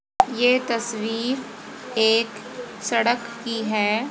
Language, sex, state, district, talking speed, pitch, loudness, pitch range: Hindi, female, Haryana, Jhajjar, 85 wpm, 235 Hz, -22 LUFS, 225-245 Hz